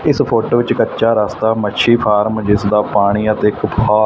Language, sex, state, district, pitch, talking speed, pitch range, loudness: Punjabi, male, Punjab, Fazilka, 110 Hz, 160 wpm, 105-115 Hz, -14 LUFS